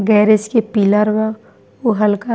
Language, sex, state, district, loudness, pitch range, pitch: Bhojpuri, female, Bihar, East Champaran, -15 LUFS, 210-220 Hz, 215 Hz